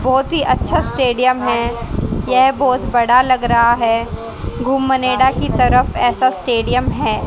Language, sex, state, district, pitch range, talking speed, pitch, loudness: Hindi, female, Haryana, Jhajjar, 240-260 Hz, 140 wpm, 255 Hz, -15 LUFS